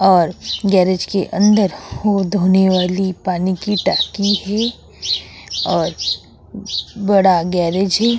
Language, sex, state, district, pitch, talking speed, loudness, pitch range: Hindi, female, Goa, North and South Goa, 190 Hz, 115 wpm, -17 LUFS, 185-205 Hz